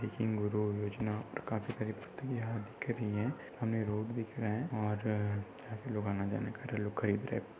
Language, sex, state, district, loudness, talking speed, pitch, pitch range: Hindi, male, Maharashtra, Solapur, -37 LUFS, 150 wpm, 110 Hz, 105-115 Hz